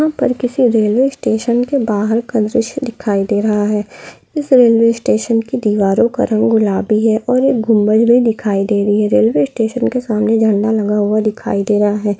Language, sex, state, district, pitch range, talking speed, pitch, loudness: Hindi, female, Bihar, Gaya, 210-240 Hz, 195 wpm, 220 Hz, -14 LUFS